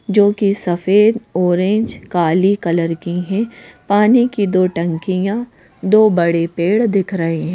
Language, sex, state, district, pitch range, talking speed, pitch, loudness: Hindi, female, Madhya Pradesh, Bhopal, 175-215 Hz, 145 wpm, 190 Hz, -16 LUFS